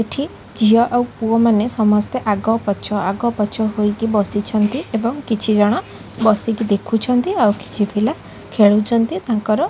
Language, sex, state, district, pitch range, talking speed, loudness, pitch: Odia, female, Odisha, Khordha, 210-230 Hz, 115 wpm, -17 LUFS, 220 Hz